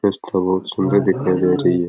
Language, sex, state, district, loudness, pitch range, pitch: Rajasthani, male, Rajasthan, Nagaur, -18 LUFS, 90-95 Hz, 95 Hz